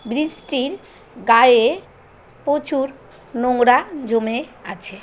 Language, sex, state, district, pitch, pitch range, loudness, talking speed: Bengali, female, West Bengal, Jhargram, 250 Hz, 230-280 Hz, -18 LUFS, 85 wpm